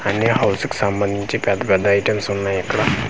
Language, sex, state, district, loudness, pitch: Telugu, male, Andhra Pradesh, Manyam, -19 LUFS, 100 Hz